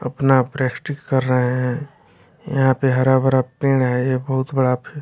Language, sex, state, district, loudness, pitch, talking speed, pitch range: Hindi, male, Bihar, West Champaran, -19 LUFS, 130 Hz, 165 wpm, 130-135 Hz